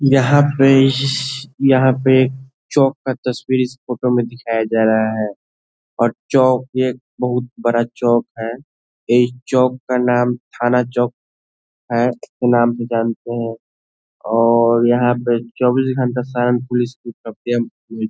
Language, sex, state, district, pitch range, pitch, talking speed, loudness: Hindi, male, Bihar, Saran, 115-130 Hz, 120 Hz, 135 wpm, -17 LUFS